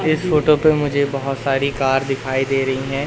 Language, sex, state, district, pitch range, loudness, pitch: Hindi, male, Madhya Pradesh, Katni, 135-150 Hz, -18 LUFS, 135 Hz